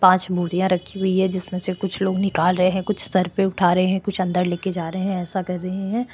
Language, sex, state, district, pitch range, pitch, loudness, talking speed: Hindi, female, Maharashtra, Chandrapur, 180-190 Hz, 185 Hz, -21 LUFS, 275 wpm